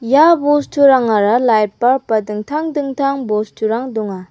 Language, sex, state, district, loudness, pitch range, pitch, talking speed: Garo, female, Meghalaya, West Garo Hills, -15 LUFS, 215-280 Hz, 245 Hz, 125 wpm